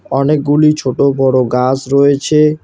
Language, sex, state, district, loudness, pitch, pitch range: Bengali, male, West Bengal, Alipurduar, -12 LUFS, 140 Hz, 135-150 Hz